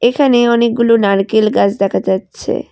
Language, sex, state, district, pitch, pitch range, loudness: Bengali, female, West Bengal, Alipurduar, 225 Hz, 200-235 Hz, -13 LUFS